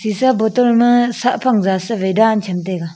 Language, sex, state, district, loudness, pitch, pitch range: Wancho, female, Arunachal Pradesh, Longding, -15 LUFS, 220 Hz, 190-240 Hz